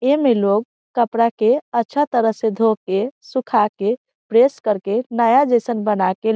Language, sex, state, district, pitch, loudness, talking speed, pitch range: Bhojpuri, female, Bihar, Saran, 230 Hz, -18 LUFS, 170 wpm, 215-245 Hz